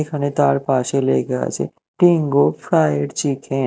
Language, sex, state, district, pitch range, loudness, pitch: Bengali, male, Odisha, Malkangiri, 135-145 Hz, -18 LUFS, 140 Hz